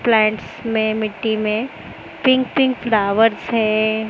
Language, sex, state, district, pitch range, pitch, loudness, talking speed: Hindi, female, Maharashtra, Mumbai Suburban, 215-240 Hz, 220 Hz, -18 LUFS, 115 wpm